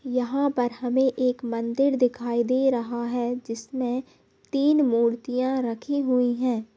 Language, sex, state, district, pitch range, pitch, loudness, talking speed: Hindi, female, Bihar, Bhagalpur, 240-260 Hz, 250 Hz, -25 LUFS, 135 wpm